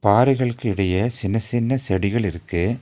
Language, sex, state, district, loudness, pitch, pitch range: Tamil, male, Tamil Nadu, Nilgiris, -21 LUFS, 110 Hz, 100-120 Hz